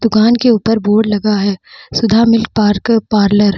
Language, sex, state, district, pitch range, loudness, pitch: Hindi, female, Bihar, Vaishali, 205-230 Hz, -12 LUFS, 215 Hz